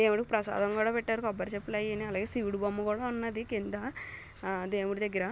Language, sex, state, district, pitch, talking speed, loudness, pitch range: Telugu, female, Telangana, Nalgonda, 210 Hz, 180 wpm, -33 LUFS, 205-225 Hz